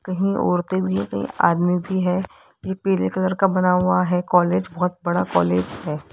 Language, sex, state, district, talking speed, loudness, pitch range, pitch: Hindi, female, Rajasthan, Jaipur, 195 wpm, -21 LUFS, 165-185 Hz, 180 Hz